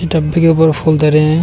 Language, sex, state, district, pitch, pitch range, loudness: Hindi, male, Uttar Pradesh, Shamli, 160 Hz, 155-165 Hz, -11 LUFS